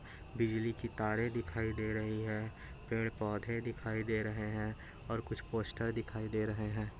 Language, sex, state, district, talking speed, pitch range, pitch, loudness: Hindi, male, Chhattisgarh, Bastar, 170 wpm, 105-115 Hz, 110 Hz, -36 LUFS